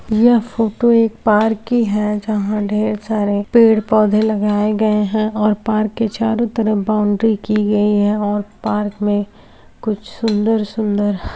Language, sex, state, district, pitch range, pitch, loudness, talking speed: Hindi, female, Bihar, Gaya, 210-220 Hz, 215 Hz, -16 LUFS, 160 wpm